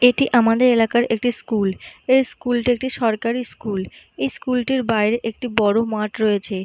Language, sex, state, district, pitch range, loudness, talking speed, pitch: Bengali, female, West Bengal, Jhargram, 215-245 Hz, -20 LUFS, 190 wpm, 230 Hz